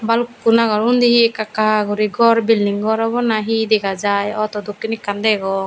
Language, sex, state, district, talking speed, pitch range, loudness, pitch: Chakma, female, Tripura, Dhalai, 200 wpm, 205-230 Hz, -16 LUFS, 215 Hz